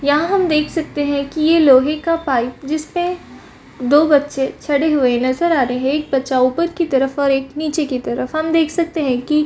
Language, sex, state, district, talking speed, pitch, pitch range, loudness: Hindi, female, Chhattisgarh, Bastar, 220 wpm, 295 Hz, 270-320 Hz, -17 LUFS